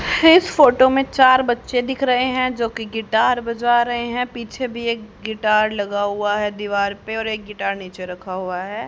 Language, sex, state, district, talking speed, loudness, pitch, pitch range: Hindi, female, Haryana, Charkhi Dadri, 205 wpm, -19 LUFS, 225 Hz, 205-250 Hz